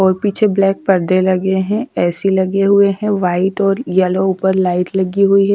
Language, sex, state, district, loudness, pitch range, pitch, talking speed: Hindi, female, Punjab, Kapurthala, -15 LUFS, 185-195 Hz, 190 Hz, 195 wpm